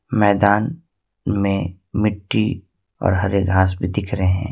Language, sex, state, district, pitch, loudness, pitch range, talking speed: Hindi, male, Jharkhand, Ranchi, 100 Hz, -20 LUFS, 95-105 Hz, 130 wpm